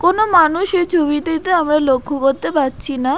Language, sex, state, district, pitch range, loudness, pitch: Bengali, female, West Bengal, Dakshin Dinajpur, 275-350 Hz, -16 LUFS, 310 Hz